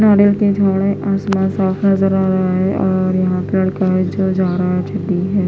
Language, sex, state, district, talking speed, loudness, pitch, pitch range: Hindi, female, Odisha, Khordha, 140 wpm, -16 LUFS, 190 Hz, 185-195 Hz